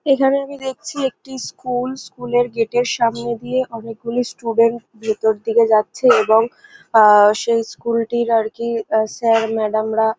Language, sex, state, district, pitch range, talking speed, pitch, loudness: Bengali, female, West Bengal, North 24 Parganas, 220-250 Hz, 145 wpm, 230 Hz, -18 LUFS